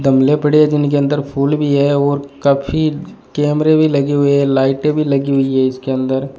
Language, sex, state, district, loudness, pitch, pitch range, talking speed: Hindi, male, Rajasthan, Bikaner, -14 LUFS, 140 Hz, 135-150 Hz, 205 wpm